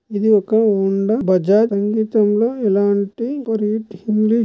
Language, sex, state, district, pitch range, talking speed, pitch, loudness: Telugu, male, Andhra Pradesh, Chittoor, 200-220 Hz, 110 wpm, 215 Hz, -17 LUFS